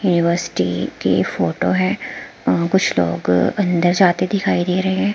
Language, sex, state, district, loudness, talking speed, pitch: Hindi, female, Himachal Pradesh, Shimla, -18 LUFS, 140 wpm, 175 Hz